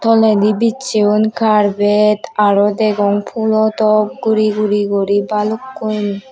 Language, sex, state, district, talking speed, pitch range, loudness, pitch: Chakma, female, Tripura, West Tripura, 105 wpm, 205-220 Hz, -14 LUFS, 210 Hz